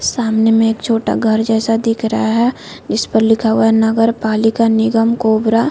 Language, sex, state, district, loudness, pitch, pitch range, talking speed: Hindi, female, Chhattisgarh, Korba, -14 LUFS, 225 Hz, 220-225 Hz, 180 wpm